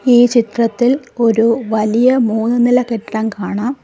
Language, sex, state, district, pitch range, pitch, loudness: Malayalam, female, Kerala, Kollam, 220-245 Hz, 235 Hz, -14 LUFS